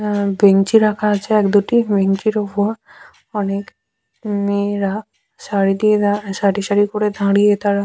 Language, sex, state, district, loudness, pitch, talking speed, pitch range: Bengali, female, West Bengal, Malda, -17 LUFS, 205 Hz, 155 wpm, 200-210 Hz